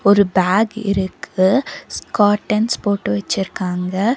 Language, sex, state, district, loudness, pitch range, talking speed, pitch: Tamil, female, Tamil Nadu, Nilgiris, -18 LUFS, 185-215 Hz, 85 wpm, 200 Hz